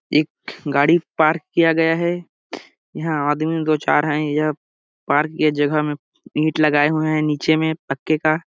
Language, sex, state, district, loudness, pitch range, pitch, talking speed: Hindi, male, Chhattisgarh, Sarguja, -19 LUFS, 150-160 Hz, 155 Hz, 155 wpm